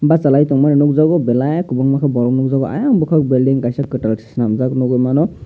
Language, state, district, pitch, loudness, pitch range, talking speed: Kokborok, Tripura, Dhalai, 135 Hz, -15 LUFS, 125-150 Hz, 175 wpm